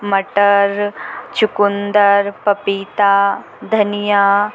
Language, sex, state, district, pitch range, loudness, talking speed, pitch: Hindi, female, Chhattisgarh, Bilaspur, 200-205 Hz, -15 LUFS, 65 wpm, 205 Hz